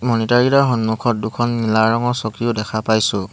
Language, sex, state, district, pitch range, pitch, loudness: Assamese, male, Assam, Hailakandi, 110-120 Hz, 115 Hz, -17 LUFS